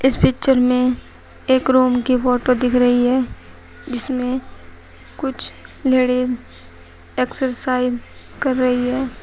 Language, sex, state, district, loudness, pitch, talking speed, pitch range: Hindi, female, Uttar Pradesh, Shamli, -18 LUFS, 250 Hz, 105 wpm, 245-260 Hz